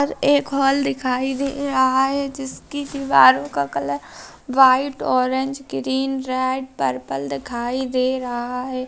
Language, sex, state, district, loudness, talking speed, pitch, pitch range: Hindi, female, Bihar, Begusarai, -20 LUFS, 130 wpm, 260 Hz, 245-275 Hz